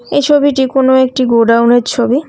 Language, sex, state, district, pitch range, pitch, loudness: Bengali, female, West Bengal, Cooch Behar, 240-275 Hz, 260 Hz, -10 LUFS